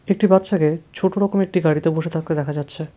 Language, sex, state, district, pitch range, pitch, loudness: Bengali, male, West Bengal, Cooch Behar, 155-190 Hz, 165 Hz, -20 LUFS